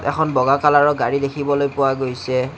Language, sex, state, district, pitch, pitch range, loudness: Assamese, male, Assam, Kamrup Metropolitan, 140 Hz, 130-145 Hz, -18 LUFS